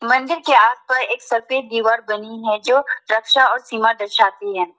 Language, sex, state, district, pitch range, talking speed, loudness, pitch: Hindi, female, Arunachal Pradesh, Lower Dibang Valley, 215-255 Hz, 190 wpm, -17 LUFS, 230 Hz